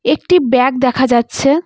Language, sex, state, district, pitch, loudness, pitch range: Bengali, female, West Bengal, Cooch Behar, 260 Hz, -13 LUFS, 255-280 Hz